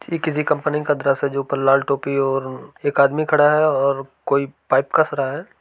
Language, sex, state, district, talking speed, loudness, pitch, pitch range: Hindi, male, Bihar, East Champaran, 225 wpm, -19 LUFS, 140 Hz, 140-150 Hz